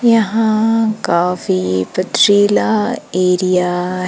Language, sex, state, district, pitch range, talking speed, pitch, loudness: Hindi, female, Madhya Pradesh, Umaria, 180-215 Hz, 75 wpm, 185 Hz, -14 LUFS